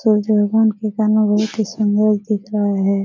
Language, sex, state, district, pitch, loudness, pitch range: Hindi, female, Bihar, Jahanabad, 210 Hz, -17 LUFS, 205-215 Hz